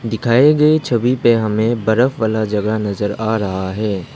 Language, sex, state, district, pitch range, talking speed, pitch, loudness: Hindi, male, Arunachal Pradesh, Lower Dibang Valley, 105-120 Hz, 175 wpm, 110 Hz, -16 LUFS